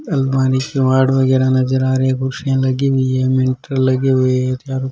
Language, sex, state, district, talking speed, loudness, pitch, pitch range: Rajasthani, male, Rajasthan, Churu, 185 wpm, -16 LUFS, 130 Hz, 130-135 Hz